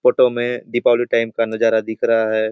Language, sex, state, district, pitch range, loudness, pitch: Hindi, male, Chhattisgarh, Bastar, 110-120 Hz, -18 LUFS, 115 Hz